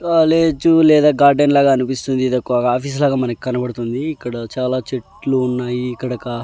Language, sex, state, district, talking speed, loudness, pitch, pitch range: Telugu, male, Andhra Pradesh, Annamaya, 150 wpm, -16 LUFS, 130 Hz, 125-145 Hz